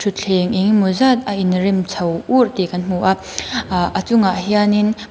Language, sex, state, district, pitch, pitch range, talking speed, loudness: Mizo, female, Mizoram, Aizawl, 195 Hz, 185-210 Hz, 200 wpm, -17 LUFS